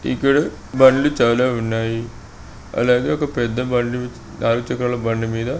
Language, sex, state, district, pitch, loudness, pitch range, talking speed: Telugu, male, Andhra Pradesh, Srikakulam, 120 Hz, -19 LUFS, 115-130 Hz, 130 wpm